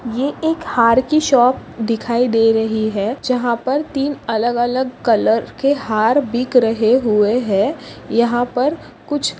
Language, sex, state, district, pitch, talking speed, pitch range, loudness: Hindi, female, Maharashtra, Pune, 245 Hz, 155 wpm, 225-270 Hz, -17 LUFS